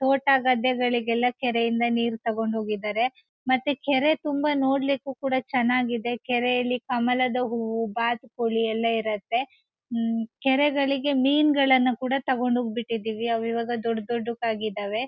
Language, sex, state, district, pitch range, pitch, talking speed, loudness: Kannada, female, Karnataka, Shimoga, 230-270 Hz, 245 Hz, 130 wpm, -25 LUFS